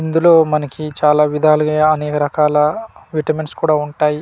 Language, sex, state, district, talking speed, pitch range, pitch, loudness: Telugu, male, Andhra Pradesh, Manyam, 115 wpm, 150-155 Hz, 155 Hz, -15 LUFS